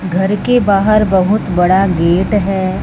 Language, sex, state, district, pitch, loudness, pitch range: Hindi, male, Punjab, Fazilka, 190 Hz, -13 LUFS, 185-205 Hz